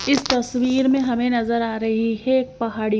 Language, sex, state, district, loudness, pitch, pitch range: Hindi, female, Haryana, Jhajjar, -21 LUFS, 240 Hz, 225-260 Hz